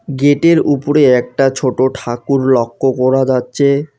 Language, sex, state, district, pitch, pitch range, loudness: Bengali, male, West Bengal, Alipurduar, 135 Hz, 130-145 Hz, -13 LUFS